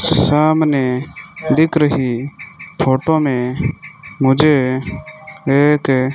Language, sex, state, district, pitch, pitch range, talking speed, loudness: Hindi, male, Rajasthan, Bikaner, 150 Hz, 130-155 Hz, 80 wpm, -15 LUFS